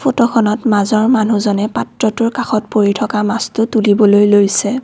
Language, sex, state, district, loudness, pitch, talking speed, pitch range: Assamese, female, Assam, Kamrup Metropolitan, -13 LUFS, 215 Hz, 125 wpm, 205-230 Hz